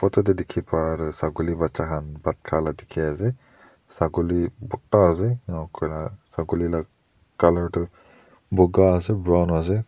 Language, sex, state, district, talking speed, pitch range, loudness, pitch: Nagamese, male, Nagaland, Dimapur, 140 wpm, 80-95 Hz, -23 LUFS, 85 Hz